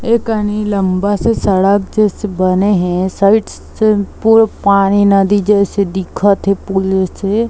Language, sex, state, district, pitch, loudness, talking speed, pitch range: Chhattisgarhi, female, Chhattisgarh, Bilaspur, 200 Hz, -13 LUFS, 145 wpm, 190-210 Hz